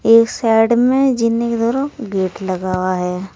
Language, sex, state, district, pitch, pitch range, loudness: Hindi, female, Uttar Pradesh, Saharanpur, 225 Hz, 185-235 Hz, -16 LUFS